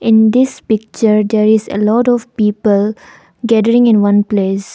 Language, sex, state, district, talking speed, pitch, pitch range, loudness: English, female, Arunachal Pradesh, Longding, 165 wpm, 220 Hz, 205-230 Hz, -12 LUFS